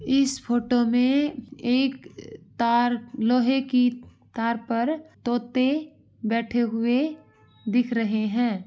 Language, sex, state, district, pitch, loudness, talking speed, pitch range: Hindi, female, Uttar Pradesh, Varanasi, 245 Hz, -24 LUFS, 105 wpm, 235-265 Hz